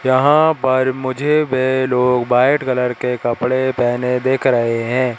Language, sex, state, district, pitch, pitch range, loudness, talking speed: Hindi, male, Madhya Pradesh, Katni, 130 Hz, 125-130 Hz, -16 LUFS, 150 wpm